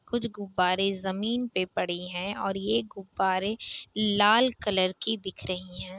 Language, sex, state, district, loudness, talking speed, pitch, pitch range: Hindi, female, Bihar, Kishanganj, -28 LUFS, 150 wpm, 195 Hz, 185-215 Hz